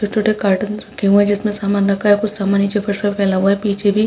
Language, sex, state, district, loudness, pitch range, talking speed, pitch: Hindi, male, Uttarakhand, Tehri Garhwal, -16 LUFS, 200-210 Hz, 310 wpm, 205 Hz